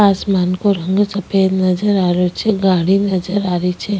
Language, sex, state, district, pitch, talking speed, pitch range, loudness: Rajasthani, female, Rajasthan, Nagaur, 195 Hz, 195 wpm, 180-200 Hz, -16 LUFS